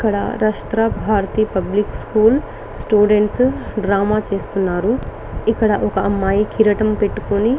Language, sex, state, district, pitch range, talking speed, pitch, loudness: Telugu, female, Telangana, Karimnagar, 200-220 Hz, 110 wpm, 210 Hz, -17 LUFS